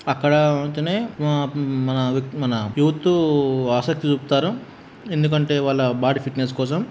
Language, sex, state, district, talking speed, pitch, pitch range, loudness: Telugu, male, Telangana, Nalgonda, 120 wpm, 145 Hz, 130-150 Hz, -21 LUFS